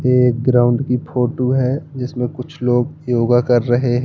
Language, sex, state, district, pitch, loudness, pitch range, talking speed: Hindi, male, Uttar Pradesh, Lalitpur, 125 Hz, -17 LUFS, 120-130 Hz, 190 wpm